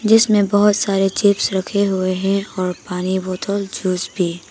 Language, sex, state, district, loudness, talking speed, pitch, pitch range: Hindi, female, Arunachal Pradesh, Papum Pare, -18 LUFS, 160 wpm, 195 Hz, 185-205 Hz